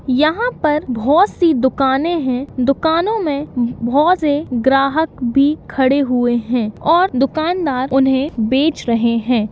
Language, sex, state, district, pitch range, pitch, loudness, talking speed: Hindi, female, Bihar, East Champaran, 250-310 Hz, 270 Hz, -16 LUFS, 130 wpm